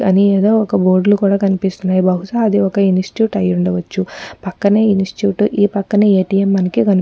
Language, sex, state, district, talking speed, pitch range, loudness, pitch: Telugu, female, Telangana, Nalgonda, 160 wpm, 185-205 Hz, -14 LUFS, 195 Hz